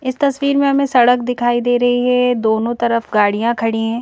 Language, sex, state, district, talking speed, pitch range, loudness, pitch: Hindi, female, Madhya Pradesh, Bhopal, 210 wpm, 230-250 Hz, -15 LUFS, 245 Hz